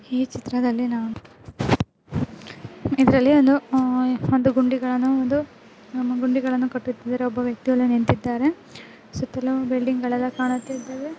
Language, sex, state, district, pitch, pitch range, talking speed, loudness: Kannada, female, Karnataka, Gulbarga, 255 Hz, 250-260 Hz, 110 wpm, -22 LUFS